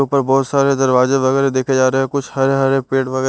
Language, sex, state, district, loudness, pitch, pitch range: Hindi, male, Bihar, Kaimur, -15 LUFS, 135 Hz, 130-135 Hz